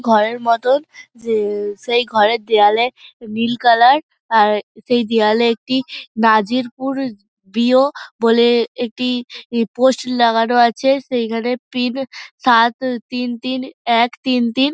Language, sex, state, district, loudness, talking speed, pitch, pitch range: Bengali, female, West Bengal, Dakshin Dinajpur, -16 LUFS, 120 wpm, 240 Hz, 230-260 Hz